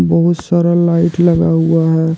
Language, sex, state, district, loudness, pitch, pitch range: Hindi, male, Jharkhand, Deoghar, -12 LUFS, 170 Hz, 165-170 Hz